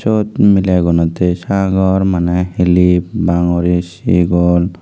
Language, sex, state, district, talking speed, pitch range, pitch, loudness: Chakma, male, Tripura, West Tripura, 110 wpm, 85-95 Hz, 90 Hz, -13 LUFS